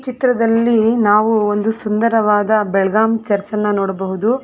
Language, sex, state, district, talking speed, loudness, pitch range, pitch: Kannada, female, Karnataka, Belgaum, 110 wpm, -15 LUFS, 205-225 Hz, 215 Hz